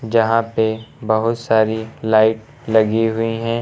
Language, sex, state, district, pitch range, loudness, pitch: Hindi, male, Uttar Pradesh, Lucknow, 110-115 Hz, -17 LUFS, 110 Hz